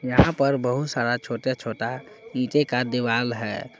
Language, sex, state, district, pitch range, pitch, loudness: Hindi, male, Jharkhand, Palamu, 120-140 Hz, 125 Hz, -24 LUFS